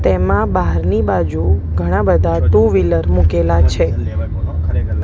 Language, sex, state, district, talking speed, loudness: Gujarati, female, Gujarat, Gandhinagar, 105 wpm, -15 LUFS